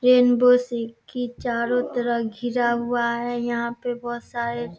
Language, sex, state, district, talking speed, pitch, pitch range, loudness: Hindi, female, Bihar, Samastipur, 165 wpm, 240 Hz, 235-245 Hz, -23 LUFS